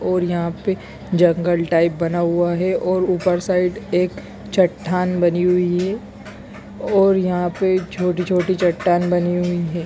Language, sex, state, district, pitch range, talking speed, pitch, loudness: Hindi, female, Chhattisgarh, Raigarh, 175-185 Hz, 150 wpm, 180 Hz, -19 LUFS